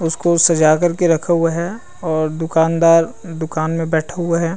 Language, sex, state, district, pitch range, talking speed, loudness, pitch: Chhattisgarhi, male, Chhattisgarh, Rajnandgaon, 160-170 Hz, 195 wpm, -16 LUFS, 165 Hz